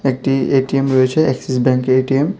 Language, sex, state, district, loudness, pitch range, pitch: Bengali, male, Tripura, West Tripura, -15 LUFS, 130-135 Hz, 135 Hz